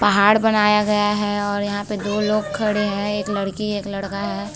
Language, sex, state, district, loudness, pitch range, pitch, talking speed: Hindi, female, Chhattisgarh, Balrampur, -20 LUFS, 200-210 Hz, 205 Hz, 235 wpm